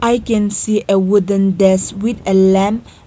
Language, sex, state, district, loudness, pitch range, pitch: English, female, Nagaland, Kohima, -14 LUFS, 195-215 Hz, 200 Hz